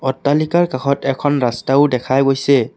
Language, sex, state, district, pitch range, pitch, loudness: Assamese, male, Assam, Kamrup Metropolitan, 130-145 Hz, 135 Hz, -16 LUFS